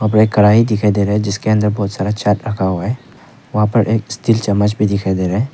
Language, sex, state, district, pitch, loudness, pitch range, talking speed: Hindi, male, Arunachal Pradesh, Papum Pare, 105 Hz, -15 LUFS, 100-115 Hz, 250 wpm